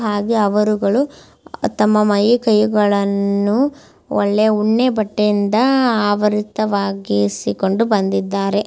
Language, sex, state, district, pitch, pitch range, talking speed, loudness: Kannada, female, Karnataka, Mysore, 210 Hz, 200-220 Hz, 70 wpm, -16 LUFS